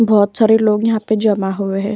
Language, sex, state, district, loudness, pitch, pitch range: Hindi, female, Uttar Pradesh, Jyotiba Phule Nagar, -15 LUFS, 215 Hz, 200-220 Hz